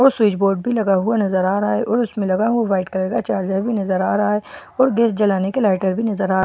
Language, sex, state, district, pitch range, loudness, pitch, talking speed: Hindi, female, Bihar, Katihar, 190-225 Hz, -18 LUFS, 205 Hz, 290 wpm